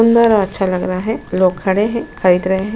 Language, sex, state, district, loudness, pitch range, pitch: Hindi, female, Goa, North and South Goa, -15 LUFS, 185-220 Hz, 190 Hz